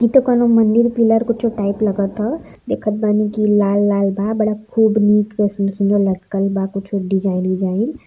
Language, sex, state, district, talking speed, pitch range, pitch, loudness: Hindi, male, Uttar Pradesh, Varanasi, 195 wpm, 200-220 Hz, 210 Hz, -17 LUFS